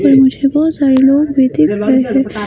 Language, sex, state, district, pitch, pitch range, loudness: Hindi, female, Himachal Pradesh, Shimla, 265 Hz, 260-280 Hz, -11 LUFS